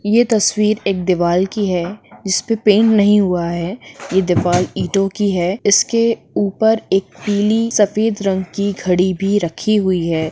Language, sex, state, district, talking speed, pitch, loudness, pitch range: Hindi, female, Jharkhand, Jamtara, 165 wpm, 200 Hz, -16 LUFS, 185-215 Hz